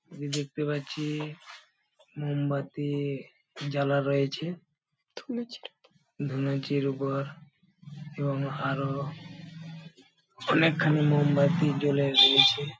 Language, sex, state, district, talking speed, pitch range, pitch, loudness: Bengali, male, West Bengal, Paschim Medinipur, 65 wpm, 140-155 Hz, 145 Hz, -27 LUFS